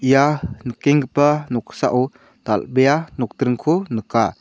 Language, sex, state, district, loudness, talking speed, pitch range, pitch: Garo, male, Meghalaya, South Garo Hills, -19 LUFS, 80 wpm, 120-145 Hz, 130 Hz